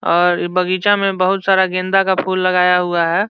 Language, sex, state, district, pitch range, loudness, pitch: Hindi, male, Bihar, Saran, 180-195 Hz, -15 LUFS, 185 Hz